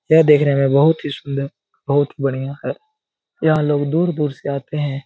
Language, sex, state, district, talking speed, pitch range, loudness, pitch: Hindi, male, Bihar, Jahanabad, 190 wpm, 140-155 Hz, -18 LUFS, 145 Hz